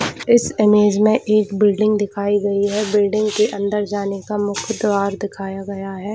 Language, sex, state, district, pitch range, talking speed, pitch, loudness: Hindi, female, Jharkhand, Jamtara, 200-215 Hz, 165 wpm, 205 Hz, -18 LUFS